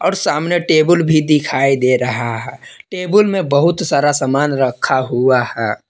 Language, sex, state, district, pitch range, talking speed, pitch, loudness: Hindi, male, Jharkhand, Palamu, 130-170 Hz, 165 wpm, 145 Hz, -14 LUFS